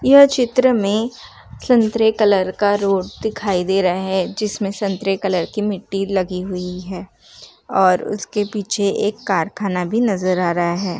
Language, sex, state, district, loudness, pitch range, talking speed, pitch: Hindi, female, Bihar, Saharsa, -18 LUFS, 185-210 Hz, 155 wpm, 195 Hz